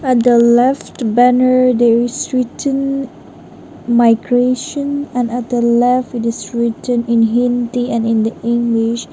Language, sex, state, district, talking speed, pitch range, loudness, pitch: English, female, Nagaland, Dimapur, 140 wpm, 235-255 Hz, -14 LUFS, 245 Hz